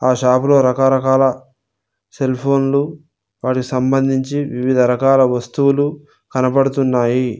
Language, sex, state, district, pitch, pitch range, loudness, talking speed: Telugu, male, Telangana, Mahabubabad, 130 Hz, 125-135 Hz, -16 LUFS, 90 wpm